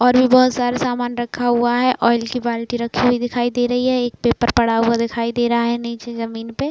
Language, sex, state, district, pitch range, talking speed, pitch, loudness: Hindi, female, Uttar Pradesh, Budaun, 235-245 Hz, 270 wpm, 240 Hz, -18 LUFS